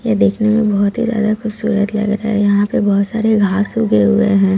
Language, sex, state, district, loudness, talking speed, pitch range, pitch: Hindi, female, Bihar, Katihar, -15 LUFS, 235 wpm, 200-220 Hz, 210 Hz